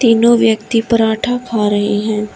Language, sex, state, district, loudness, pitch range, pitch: Hindi, female, Uttar Pradesh, Shamli, -14 LUFS, 210-235 Hz, 225 Hz